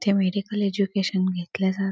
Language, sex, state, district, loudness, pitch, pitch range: Marathi, female, Karnataka, Belgaum, -25 LUFS, 195 Hz, 190-200 Hz